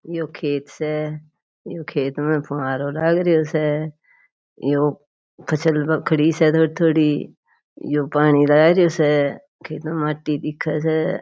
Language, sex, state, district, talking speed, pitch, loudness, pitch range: Marwari, female, Rajasthan, Churu, 130 wpm, 155 Hz, -20 LUFS, 145-160 Hz